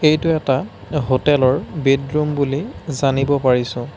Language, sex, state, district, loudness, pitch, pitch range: Assamese, male, Assam, Sonitpur, -18 LUFS, 140 Hz, 130-150 Hz